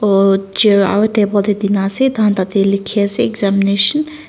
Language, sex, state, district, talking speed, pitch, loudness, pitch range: Nagamese, female, Nagaland, Dimapur, 195 wpm, 200 Hz, -14 LUFS, 195-215 Hz